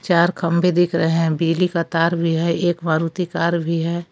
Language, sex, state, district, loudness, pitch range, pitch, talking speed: Hindi, female, Jharkhand, Palamu, -19 LUFS, 165-175 Hz, 170 Hz, 220 wpm